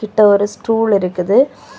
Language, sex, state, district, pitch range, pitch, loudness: Tamil, female, Tamil Nadu, Kanyakumari, 200-225 Hz, 210 Hz, -14 LUFS